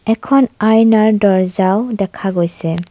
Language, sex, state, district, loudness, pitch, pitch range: Assamese, female, Assam, Kamrup Metropolitan, -13 LUFS, 205 Hz, 185-225 Hz